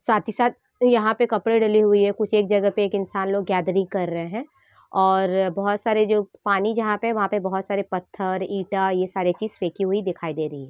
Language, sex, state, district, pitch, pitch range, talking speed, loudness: Hindi, female, Jharkhand, Sahebganj, 200 Hz, 190-215 Hz, 240 wpm, -22 LUFS